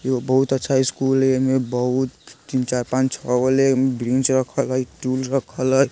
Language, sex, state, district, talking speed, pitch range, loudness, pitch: Bajjika, male, Bihar, Vaishali, 180 wpm, 125-135 Hz, -20 LUFS, 130 Hz